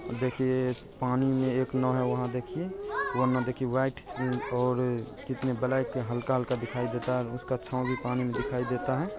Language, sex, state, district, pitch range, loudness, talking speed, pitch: Hindi, male, Bihar, Purnia, 125-130 Hz, -30 LUFS, 175 wpm, 130 Hz